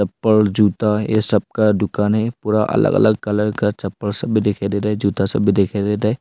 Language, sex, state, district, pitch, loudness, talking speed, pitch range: Hindi, male, Arunachal Pradesh, Longding, 105 Hz, -17 LUFS, 230 wpm, 100-110 Hz